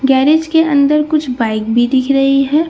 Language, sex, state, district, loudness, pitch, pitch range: Hindi, female, Bihar, Katihar, -13 LUFS, 275 Hz, 260-300 Hz